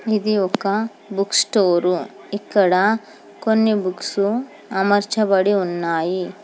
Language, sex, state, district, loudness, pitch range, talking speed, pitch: Telugu, female, Telangana, Hyderabad, -19 LUFS, 185-215 Hz, 85 wpm, 200 Hz